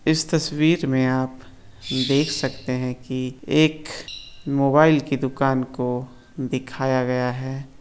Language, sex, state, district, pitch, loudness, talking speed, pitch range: Hindi, male, Bihar, Saran, 130 Hz, -22 LUFS, 125 wpm, 125-140 Hz